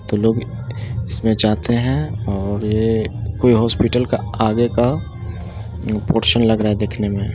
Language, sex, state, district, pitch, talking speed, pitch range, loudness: Hindi, male, Bihar, Muzaffarpur, 110 Hz, 145 wpm, 105-115 Hz, -18 LUFS